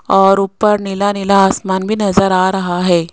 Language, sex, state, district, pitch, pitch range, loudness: Hindi, female, Rajasthan, Jaipur, 195 Hz, 190-200 Hz, -13 LUFS